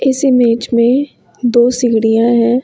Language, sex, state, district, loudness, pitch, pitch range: Hindi, female, Uttar Pradesh, Lucknow, -12 LUFS, 240 Hz, 235-260 Hz